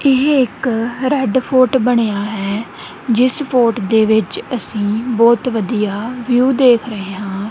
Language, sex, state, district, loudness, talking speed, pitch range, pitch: Punjabi, female, Punjab, Kapurthala, -15 LUFS, 135 wpm, 215-255 Hz, 235 Hz